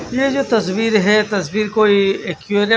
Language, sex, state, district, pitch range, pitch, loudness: Hindi, male, Chhattisgarh, Raipur, 205-225 Hz, 215 Hz, -16 LUFS